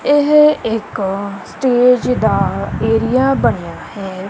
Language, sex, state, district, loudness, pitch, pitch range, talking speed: Punjabi, female, Punjab, Kapurthala, -15 LUFS, 230 Hz, 200-270 Hz, 100 wpm